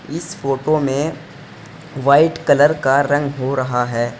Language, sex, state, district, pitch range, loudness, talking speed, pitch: Hindi, male, Uttar Pradesh, Saharanpur, 135-155 Hz, -17 LUFS, 145 wpm, 145 Hz